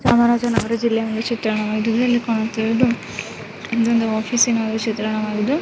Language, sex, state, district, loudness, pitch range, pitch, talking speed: Kannada, female, Karnataka, Chamarajanagar, -19 LUFS, 220-235 Hz, 225 Hz, 95 wpm